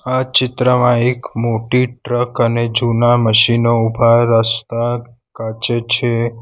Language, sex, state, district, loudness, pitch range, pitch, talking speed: Gujarati, male, Gujarat, Valsad, -15 LUFS, 115-125 Hz, 120 Hz, 110 wpm